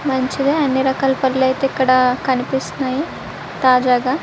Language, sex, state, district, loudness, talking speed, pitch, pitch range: Telugu, female, Andhra Pradesh, Visakhapatnam, -17 LUFS, 115 wpm, 265 Hz, 255-270 Hz